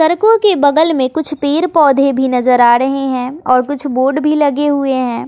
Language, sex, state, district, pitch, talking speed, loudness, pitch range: Hindi, female, Bihar, West Champaran, 280 Hz, 215 wpm, -12 LUFS, 255-300 Hz